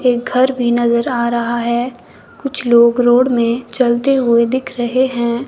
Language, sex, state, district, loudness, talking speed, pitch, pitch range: Hindi, male, Himachal Pradesh, Shimla, -15 LUFS, 175 wpm, 240 Hz, 235-255 Hz